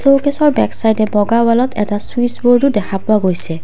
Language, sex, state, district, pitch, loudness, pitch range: Assamese, female, Assam, Kamrup Metropolitan, 225 Hz, -14 LUFS, 205-250 Hz